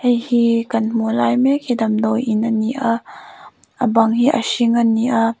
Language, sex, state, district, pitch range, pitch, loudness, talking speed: Mizo, female, Mizoram, Aizawl, 225-240 Hz, 230 Hz, -17 LUFS, 210 wpm